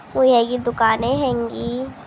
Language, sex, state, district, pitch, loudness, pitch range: Hindi, female, Rajasthan, Nagaur, 240 Hz, -19 LUFS, 235-255 Hz